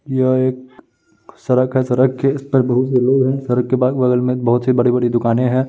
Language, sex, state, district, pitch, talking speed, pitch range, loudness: Hindi, male, Uttar Pradesh, Muzaffarnagar, 130 Hz, 265 wpm, 125-130 Hz, -16 LUFS